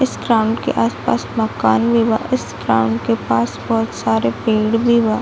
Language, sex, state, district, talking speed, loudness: Hindi, female, Chhattisgarh, Bilaspur, 195 wpm, -17 LUFS